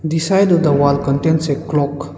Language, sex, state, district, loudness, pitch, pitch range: English, male, Arunachal Pradesh, Lower Dibang Valley, -15 LUFS, 150 Hz, 145-160 Hz